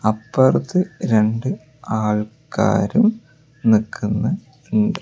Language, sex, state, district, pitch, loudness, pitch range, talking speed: Malayalam, male, Kerala, Kozhikode, 130 Hz, -19 LUFS, 110-180 Hz, 60 wpm